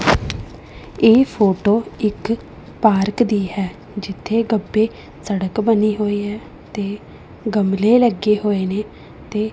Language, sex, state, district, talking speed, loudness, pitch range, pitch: Punjabi, female, Punjab, Pathankot, 105 wpm, -18 LUFS, 200-220 Hz, 210 Hz